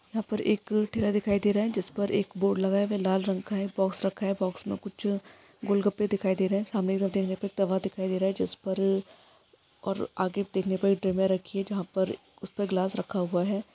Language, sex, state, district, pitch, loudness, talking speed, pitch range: Hindi, female, Chhattisgarh, Kabirdham, 195 Hz, -29 LUFS, 245 wpm, 190-205 Hz